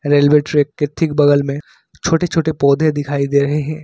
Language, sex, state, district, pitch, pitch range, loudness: Hindi, male, Uttar Pradesh, Lucknow, 145 Hz, 145-155 Hz, -15 LUFS